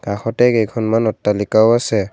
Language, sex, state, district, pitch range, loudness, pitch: Assamese, male, Assam, Kamrup Metropolitan, 105-115 Hz, -16 LUFS, 110 Hz